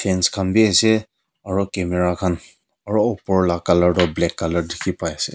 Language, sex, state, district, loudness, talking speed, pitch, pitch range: Nagamese, male, Nagaland, Kohima, -19 LUFS, 190 wpm, 90 Hz, 85-100 Hz